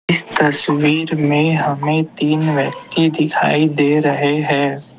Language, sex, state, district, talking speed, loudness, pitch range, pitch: Hindi, male, Assam, Kamrup Metropolitan, 120 wpm, -16 LUFS, 145-155 Hz, 150 Hz